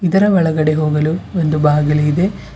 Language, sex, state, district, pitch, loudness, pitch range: Kannada, female, Karnataka, Bidar, 155 Hz, -15 LUFS, 150-175 Hz